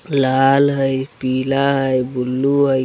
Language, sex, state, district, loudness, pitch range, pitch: Bajjika, male, Bihar, Vaishali, -17 LUFS, 130-140 Hz, 135 Hz